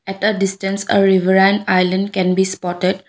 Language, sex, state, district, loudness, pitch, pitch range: English, female, Assam, Kamrup Metropolitan, -16 LUFS, 190 Hz, 185-195 Hz